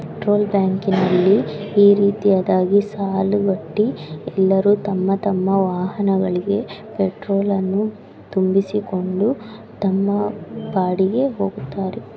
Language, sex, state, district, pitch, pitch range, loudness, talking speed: Kannada, female, Karnataka, Raichur, 195 Hz, 190-205 Hz, -19 LUFS, 80 wpm